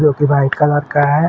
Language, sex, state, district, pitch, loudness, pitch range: Hindi, male, Uttar Pradesh, Ghazipur, 145 Hz, -14 LUFS, 145-150 Hz